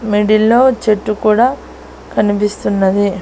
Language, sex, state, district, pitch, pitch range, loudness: Telugu, female, Andhra Pradesh, Annamaya, 215 Hz, 205-225 Hz, -13 LUFS